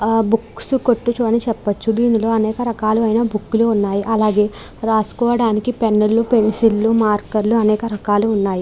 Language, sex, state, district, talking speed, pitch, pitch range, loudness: Telugu, female, Andhra Pradesh, Krishna, 160 wpm, 225 Hz, 215-230 Hz, -17 LUFS